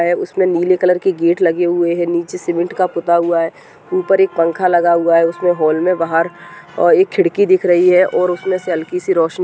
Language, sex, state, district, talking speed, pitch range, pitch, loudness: Hindi, female, Bihar, Saharsa, 240 wpm, 170-185 Hz, 175 Hz, -15 LUFS